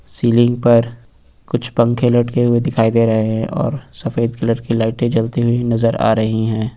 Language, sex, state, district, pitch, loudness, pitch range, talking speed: Hindi, male, Uttar Pradesh, Lucknow, 115 Hz, -16 LUFS, 110-120 Hz, 185 wpm